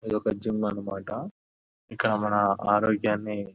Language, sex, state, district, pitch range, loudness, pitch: Telugu, male, Telangana, Nalgonda, 100-105 Hz, -27 LUFS, 105 Hz